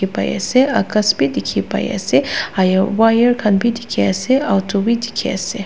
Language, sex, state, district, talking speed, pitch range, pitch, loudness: Nagamese, female, Nagaland, Dimapur, 180 wpm, 195-235 Hz, 215 Hz, -16 LUFS